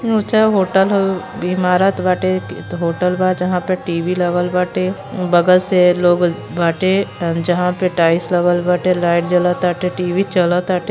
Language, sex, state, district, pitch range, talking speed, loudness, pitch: Bhojpuri, female, Uttar Pradesh, Gorakhpur, 175-185 Hz, 145 wpm, -16 LUFS, 180 Hz